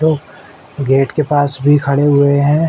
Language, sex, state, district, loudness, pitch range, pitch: Hindi, male, Uttar Pradesh, Ghazipur, -13 LUFS, 140-150 Hz, 145 Hz